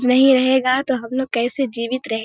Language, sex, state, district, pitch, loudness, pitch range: Hindi, female, Bihar, Kishanganj, 255 Hz, -18 LUFS, 240-260 Hz